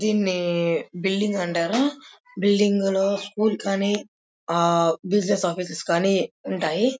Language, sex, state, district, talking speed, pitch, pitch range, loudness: Telugu, male, Andhra Pradesh, Krishna, 105 wpm, 195 Hz, 175-205 Hz, -23 LUFS